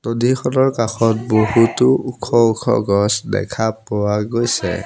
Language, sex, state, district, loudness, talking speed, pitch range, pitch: Assamese, male, Assam, Sonitpur, -17 LUFS, 110 wpm, 105-120 Hz, 115 Hz